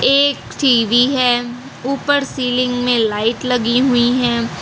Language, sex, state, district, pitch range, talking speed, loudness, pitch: Hindi, female, Karnataka, Bangalore, 240-260 Hz, 130 wpm, -15 LUFS, 245 Hz